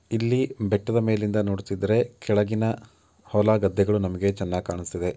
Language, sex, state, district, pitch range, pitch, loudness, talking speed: Kannada, male, Karnataka, Mysore, 100-110 Hz, 105 Hz, -24 LUFS, 115 wpm